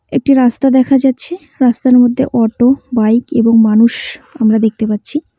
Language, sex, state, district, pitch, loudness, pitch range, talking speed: Bengali, female, West Bengal, Cooch Behar, 250 Hz, -12 LUFS, 230-270 Hz, 145 wpm